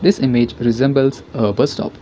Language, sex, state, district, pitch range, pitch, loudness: English, female, Karnataka, Bangalore, 120-135 Hz, 130 Hz, -17 LUFS